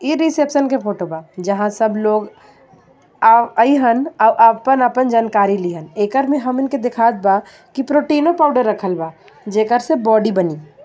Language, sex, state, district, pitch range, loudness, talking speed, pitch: Bhojpuri, female, Jharkhand, Palamu, 205-270 Hz, -16 LUFS, 145 wpm, 230 Hz